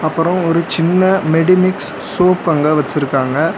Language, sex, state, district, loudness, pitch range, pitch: Tamil, male, Tamil Nadu, Chennai, -14 LUFS, 155-180 Hz, 165 Hz